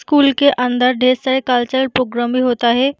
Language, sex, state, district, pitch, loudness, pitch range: Hindi, female, Uttar Pradesh, Jyotiba Phule Nagar, 255 Hz, -15 LUFS, 250-265 Hz